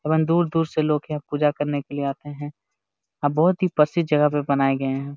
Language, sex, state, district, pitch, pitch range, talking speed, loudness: Hindi, male, Jharkhand, Jamtara, 145 Hz, 140-155 Hz, 220 wpm, -22 LUFS